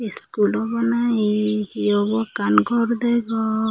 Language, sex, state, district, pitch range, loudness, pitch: Chakma, female, Tripura, Unakoti, 205-235 Hz, -20 LUFS, 220 Hz